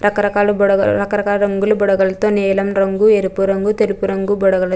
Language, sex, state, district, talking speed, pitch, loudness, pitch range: Telugu, female, Andhra Pradesh, Chittoor, 165 wpm, 200 Hz, -15 LUFS, 195-205 Hz